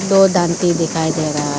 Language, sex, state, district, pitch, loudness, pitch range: Hindi, female, Arunachal Pradesh, Lower Dibang Valley, 165 Hz, -16 LUFS, 160-180 Hz